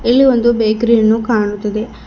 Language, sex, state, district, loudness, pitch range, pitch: Kannada, female, Karnataka, Bidar, -13 LUFS, 215-240 Hz, 225 Hz